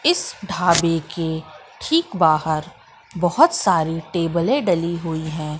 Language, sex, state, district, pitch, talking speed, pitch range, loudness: Hindi, female, Madhya Pradesh, Katni, 170 Hz, 120 wpm, 160-190 Hz, -20 LUFS